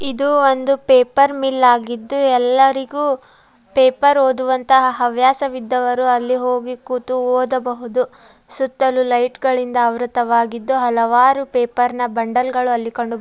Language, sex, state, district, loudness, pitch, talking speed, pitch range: Kannada, female, Karnataka, Dharwad, -16 LUFS, 255 Hz, 105 wpm, 245-265 Hz